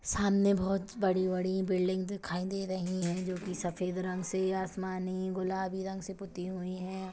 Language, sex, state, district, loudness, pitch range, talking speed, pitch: Hindi, female, Chhattisgarh, Kabirdham, -33 LUFS, 185-190 Hz, 170 wpm, 185 Hz